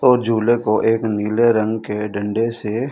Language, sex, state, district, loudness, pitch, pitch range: Hindi, male, Delhi, New Delhi, -18 LUFS, 110 Hz, 105-115 Hz